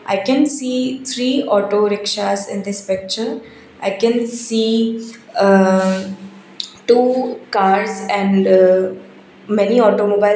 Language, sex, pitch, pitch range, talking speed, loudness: English, female, 205 Hz, 195-235 Hz, 110 wpm, -16 LUFS